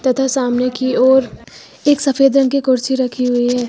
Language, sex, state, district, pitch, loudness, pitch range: Hindi, female, Uttar Pradesh, Lucknow, 260 Hz, -15 LUFS, 250-270 Hz